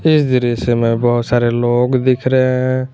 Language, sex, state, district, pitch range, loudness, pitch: Hindi, male, Jharkhand, Garhwa, 120-130 Hz, -15 LUFS, 125 Hz